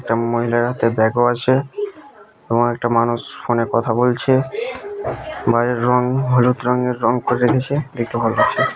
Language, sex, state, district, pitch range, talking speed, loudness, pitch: Bengali, male, West Bengal, Malda, 120-125 Hz, 155 wpm, -18 LUFS, 120 Hz